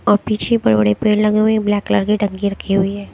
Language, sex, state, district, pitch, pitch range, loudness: Hindi, female, Haryana, Rohtak, 205 Hz, 195-215 Hz, -16 LUFS